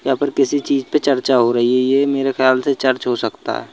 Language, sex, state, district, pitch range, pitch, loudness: Hindi, male, Madhya Pradesh, Bhopal, 130-140 Hz, 135 Hz, -17 LUFS